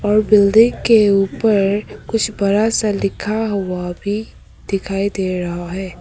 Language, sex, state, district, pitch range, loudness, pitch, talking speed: Hindi, female, Arunachal Pradesh, Papum Pare, 195-215 Hz, -17 LUFS, 200 Hz, 140 wpm